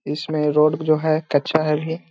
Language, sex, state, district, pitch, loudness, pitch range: Hindi, male, Bihar, Gaya, 155 Hz, -20 LUFS, 150-160 Hz